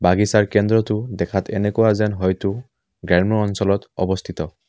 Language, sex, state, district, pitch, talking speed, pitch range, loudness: Assamese, male, Assam, Kamrup Metropolitan, 100 Hz, 115 wpm, 95-105 Hz, -19 LUFS